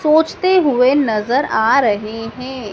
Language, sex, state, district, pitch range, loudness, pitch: Hindi, female, Madhya Pradesh, Dhar, 225-305 Hz, -15 LUFS, 255 Hz